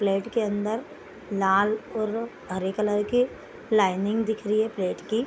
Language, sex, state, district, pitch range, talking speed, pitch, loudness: Hindi, female, Bihar, Gopalganj, 195-225 Hz, 160 wpm, 210 Hz, -26 LUFS